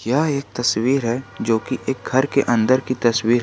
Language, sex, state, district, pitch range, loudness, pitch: Hindi, male, Jharkhand, Garhwa, 115-135 Hz, -20 LUFS, 125 Hz